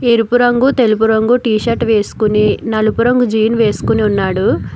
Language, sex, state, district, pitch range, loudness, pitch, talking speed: Telugu, female, Telangana, Hyderabad, 215-240 Hz, -13 LUFS, 220 Hz, 150 wpm